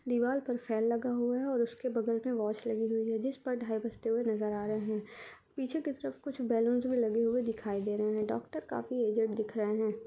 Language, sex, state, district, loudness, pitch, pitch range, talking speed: Hindi, female, Maharashtra, Sindhudurg, -33 LUFS, 230 Hz, 220-245 Hz, 240 wpm